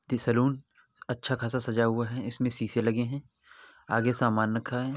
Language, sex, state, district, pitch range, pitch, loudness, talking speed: Hindi, male, Uttar Pradesh, Muzaffarnagar, 115-130 Hz, 120 Hz, -29 LUFS, 170 wpm